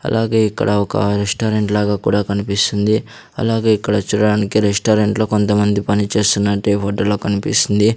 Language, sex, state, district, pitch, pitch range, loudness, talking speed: Telugu, male, Andhra Pradesh, Sri Satya Sai, 105 Hz, 100-110 Hz, -16 LUFS, 135 wpm